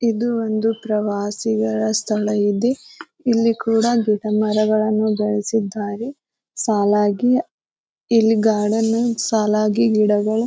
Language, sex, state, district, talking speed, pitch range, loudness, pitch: Kannada, female, Karnataka, Bijapur, 90 wpm, 210-230 Hz, -19 LUFS, 220 Hz